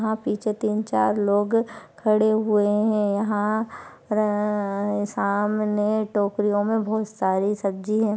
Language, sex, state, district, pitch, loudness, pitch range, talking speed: Hindi, female, Maharashtra, Nagpur, 210 Hz, -23 LUFS, 205-215 Hz, 145 wpm